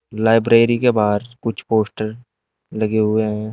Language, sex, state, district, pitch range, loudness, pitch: Hindi, male, Uttar Pradesh, Shamli, 110-115 Hz, -18 LUFS, 110 Hz